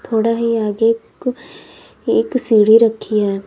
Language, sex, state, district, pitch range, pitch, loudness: Hindi, female, Uttar Pradesh, Lalitpur, 220-235 Hz, 225 Hz, -15 LUFS